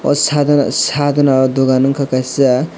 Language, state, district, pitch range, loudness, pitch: Kokborok, Tripura, West Tripura, 130-145 Hz, -13 LUFS, 140 Hz